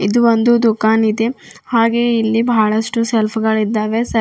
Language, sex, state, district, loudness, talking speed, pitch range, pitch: Kannada, female, Karnataka, Bidar, -15 LUFS, 155 wpm, 220-230 Hz, 225 Hz